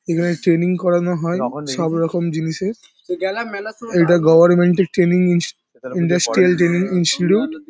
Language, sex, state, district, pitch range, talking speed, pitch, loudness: Bengali, male, West Bengal, Paschim Medinipur, 170-185 Hz, 115 wpm, 175 Hz, -17 LUFS